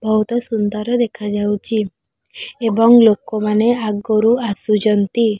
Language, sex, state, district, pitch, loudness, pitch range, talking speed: Odia, female, Odisha, Khordha, 215 Hz, -16 LUFS, 210-230 Hz, 80 wpm